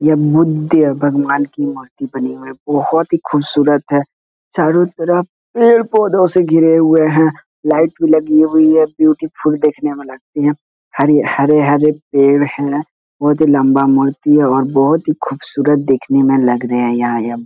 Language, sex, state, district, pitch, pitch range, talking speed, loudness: Hindi, male, Bihar, Jahanabad, 150 Hz, 140-155 Hz, 170 wpm, -13 LUFS